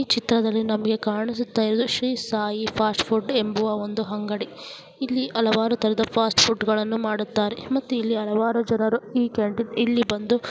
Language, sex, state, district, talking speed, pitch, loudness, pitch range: Kannada, female, Karnataka, Dharwad, 155 wpm, 225 Hz, -23 LUFS, 215-235 Hz